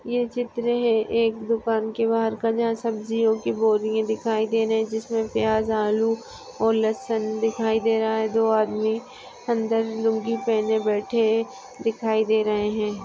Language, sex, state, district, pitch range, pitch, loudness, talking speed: Hindi, female, Maharashtra, Aurangabad, 220-230 Hz, 225 Hz, -23 LUFS, 160 wpm